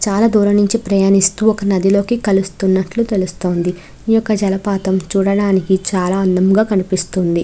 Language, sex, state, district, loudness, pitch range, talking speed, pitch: Telugu, female, Andhra Pradesh, Krishna, -15 LUFS, 185-205 Hz, 130 wpm, 195 Hz